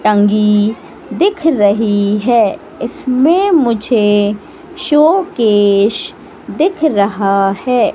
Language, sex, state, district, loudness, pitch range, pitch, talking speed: Hindi, female, Madhya Pradesh, Katni, -12 LUFS, 205-320 Hz, 230 Hz, 85 wpm